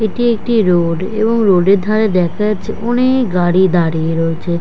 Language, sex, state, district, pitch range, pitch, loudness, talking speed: Bengali, female, West Bengal, Kolkata, 175-220 Hz, 195 Hz, -14 LUFS, 170 wpm